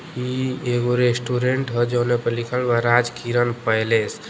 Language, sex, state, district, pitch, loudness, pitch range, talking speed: Bhojpuri, male, Uttar Pradesh, Deoria, 120 Hz, -21 LUFS, 120-125 Hz, 155 wpm